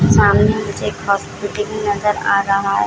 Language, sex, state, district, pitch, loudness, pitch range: Hindi, female, Bihar, Jamui, 205 Hz, -17 LUFS, 200-210 Hz